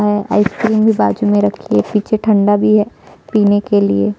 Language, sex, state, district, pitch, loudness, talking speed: Hindi, female, Chhattisgarh, Sukma, 205 Hz, -14 LUFS, 215 wpm